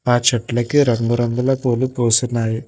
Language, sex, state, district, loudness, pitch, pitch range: Telugu, male, Telangana, Hyderabad, -17 LUFS, 120 Hz, 120-125 Hz